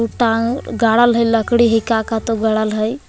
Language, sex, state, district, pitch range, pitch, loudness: Magahi, female, Jharkhand, Palamu, 225-235 Hz, 225 Hz, -16 LUFS